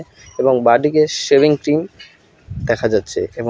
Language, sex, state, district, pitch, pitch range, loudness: Bengali, male, West Bengal, Alipurduar, 150 Hz, 140-155 Hz, -16 LUFS